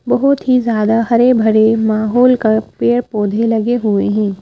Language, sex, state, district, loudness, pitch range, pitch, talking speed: Hindi, female, Madhya Pradesh, Bhopal, -13 LUFS, 215-240 Hz, 220 Hz, 175 wpm